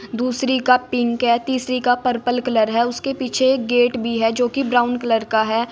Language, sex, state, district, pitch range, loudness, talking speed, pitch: Hindi, female, Uttar Pradesh, Saharanpur, 235-250 Hz, -19 LUFS, 210 wpm, 245 Hz